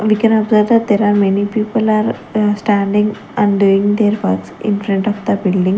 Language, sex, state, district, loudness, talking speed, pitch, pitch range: English, female, Chandigarh, Chandigarh, -14 LUFS, 195 wpm, 205 Hz, 200-215 Hz